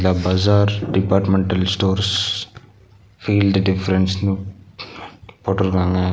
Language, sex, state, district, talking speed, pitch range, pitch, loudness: Tamil, male, Tamil Nadu, Nilgiris, 80 wpm, 95-100 Hz, 95 Hz, -18 LUFS